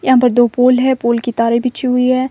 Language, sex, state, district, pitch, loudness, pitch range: Hindi, female, Himachal Pradesh, Shimla, 250 Hz, -13 LUFS, 240-255 Hz